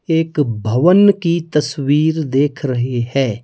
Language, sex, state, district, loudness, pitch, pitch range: Hindi, male, Himachal Pradesh, Shimla, -16 LUFS, 145 Hz, 130-165 Hz